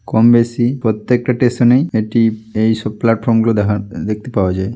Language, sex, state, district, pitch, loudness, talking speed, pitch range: Bengali, male, West Bengal, Malda, 115 Hz, -15 LUFS, 165 wpm, 105-120 Hz